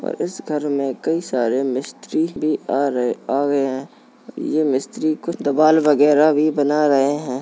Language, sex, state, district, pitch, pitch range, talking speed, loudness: Hindi, male, Uttar Pradesh, Jalaun, 150 Hz, 135-155 Hz, 180 wpm, -19 LUFS